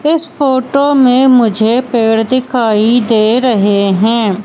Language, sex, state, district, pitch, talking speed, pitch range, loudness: Hindi, female, Madhya Pradesh, Katni, 240 Hz, 120 wpm, 220-260 Hz, -11 LUFS